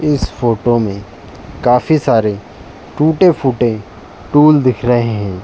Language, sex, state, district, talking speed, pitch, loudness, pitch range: Hindi, male, Uttar Pradesh, Jalaun, 110 wpm, 120 Hz, -13 LUFS, 105-140 Hz